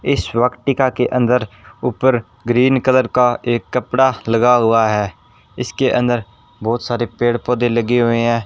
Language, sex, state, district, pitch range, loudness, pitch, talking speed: Hindi, male, Rajasthan, Bikaner, 115-125 Hz, -16 LUFS, 120 Hz, 155 wpm